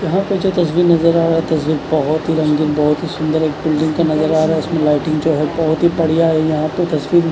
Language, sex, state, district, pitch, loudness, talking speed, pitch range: Hindi, male, Odisha, Khordha, 160 Hz, -15 LUFS, 260 wpm, 155-165 Hz